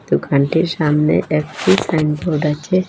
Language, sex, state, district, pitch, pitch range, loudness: Bengali, female, Assam, Hailakandi, 150 Hz, 150-165 Hz, -17 LUFS